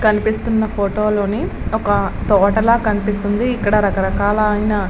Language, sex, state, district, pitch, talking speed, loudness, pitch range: Telugu, female, Andhra Pradesh, Srikakulam, 210 Hz, 125 wpm, -17 LUFS, 205-220 Hz